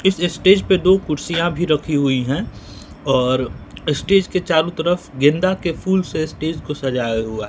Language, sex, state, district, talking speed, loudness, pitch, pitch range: Hindi, male, Bihar, West Champaran, 175 wpm, -18 LUFS, 155 Hz, 130-180 Hz